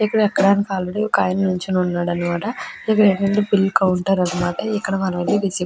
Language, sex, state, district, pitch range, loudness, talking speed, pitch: Telugu, female, Andhra Pradesh, Krishna, 180-205 Hz, -19 LUFS, 180 wpm, 195 Hz